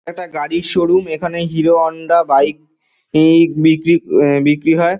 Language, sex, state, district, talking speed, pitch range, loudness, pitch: Bengali, male, West Bengal, Dakshin Dinajpur, 120 wpm, 155-170 Hz, -14 LUFS, 165 Hz